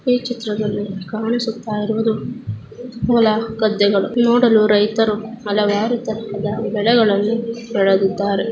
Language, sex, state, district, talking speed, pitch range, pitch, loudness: Kannada, female, Karnataka, Chamarajanagar, 85 wpm, 205-230 Hz, 220 Hz, -18 LUFS